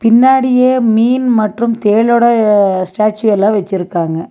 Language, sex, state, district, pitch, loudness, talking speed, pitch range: Tamil, female, Tamil Nadu, Nilgiris, 220 Hz, -12 LUFS, 95 wpm, 200-235 Hz